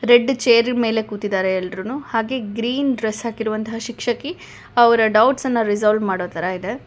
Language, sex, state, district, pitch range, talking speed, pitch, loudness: Kannada, female, Karnataka, Bangalore, 210-240 Hz, 140 wpm, 225 Hz, -19 LUFS